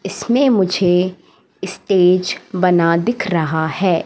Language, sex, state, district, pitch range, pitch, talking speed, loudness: Hindi, female, Madhya Pradesh, Katni, 175-195 Hz, 185 Hz, 105 wpm, -16 LUFS